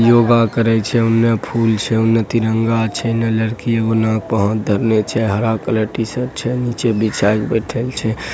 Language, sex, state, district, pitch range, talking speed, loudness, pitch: Angika, male, Bihar, Begusarai, 110-115 Hz, 145 wpm, -16 LUFS, 115 Hz